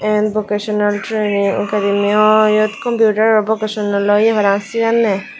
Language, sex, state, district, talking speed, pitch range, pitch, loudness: Chakma, female, Tripura, Dhalai, 120 wpm, 205-220 Hz, 215 Hz, -15 LUFS